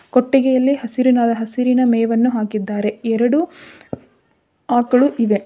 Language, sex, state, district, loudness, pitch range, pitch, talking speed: Kannada, female, Karnataka, Dharwad, -17 LUFS, 230-255 Hz, 240 Hz, 90 wpm